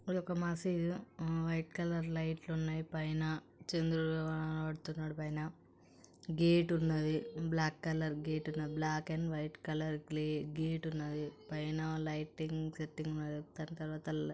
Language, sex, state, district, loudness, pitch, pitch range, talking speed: Telugu, female, Andhra Pradesh, Chittoor, -38 LUFS, 155 Hz, 155-165 Hz, 120 wpm